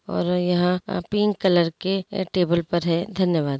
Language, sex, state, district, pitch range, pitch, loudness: Hindi, female, Andhra Pradesh, Chittoor, 170-190 Hz, 180 Hz, -22 LUFS